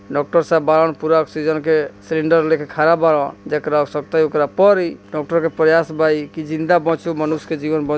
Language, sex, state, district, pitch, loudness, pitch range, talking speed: Bhojpuri, male, Bihar, East Champaran, 160 Hz, -17 LUFS, 150-165 Hz, 220 wpm